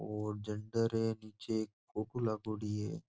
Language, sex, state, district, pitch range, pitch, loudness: Marwari, male, Rajasthan, Nagaur, 105-110 Hz, 105 Hz, -38 LUFS